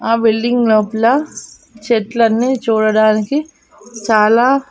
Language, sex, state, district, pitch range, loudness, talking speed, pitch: Telugu, female, Andhra Pradesh, Annamaya, 215-245 Hz, -14 LUFS, 90 wpm, 230 Hz